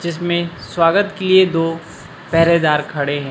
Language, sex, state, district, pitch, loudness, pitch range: Hindi, male, Chhattisgarh, Raipur, 165 Hz, -16 LUFS, 150-175 Hz